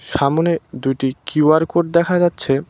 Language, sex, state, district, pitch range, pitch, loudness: Bengali, male, West Bengal, Cooch Behar, 140-170 Hz, 160 Hz, -17 LUFS